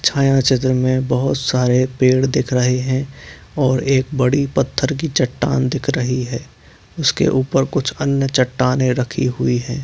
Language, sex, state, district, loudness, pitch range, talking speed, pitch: Hindi, male, Bihar, Begusarai, -17 LUFS, 125-135 Hz, 165 wpm, 130 Hz